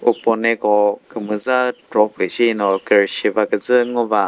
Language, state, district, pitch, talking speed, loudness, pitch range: Chakhesang, Nagaland, Dimapur, 115 Hz, 125 wpm, -17 LUFS, 105-120 Hz